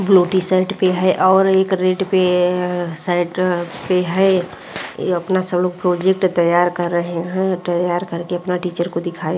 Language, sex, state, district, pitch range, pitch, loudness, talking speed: Hindi, female, Uttar Pradesh, Muzaffarnagar, 175-185 Hz, 180 Hz, -17 LUFS, 175 wpm